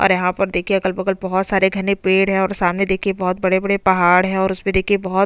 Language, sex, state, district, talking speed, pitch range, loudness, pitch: Hindi, female, Chhattisgarh, Bastar, 295 wpm, 185-195 Hz, -17 LUFS, 190 Hz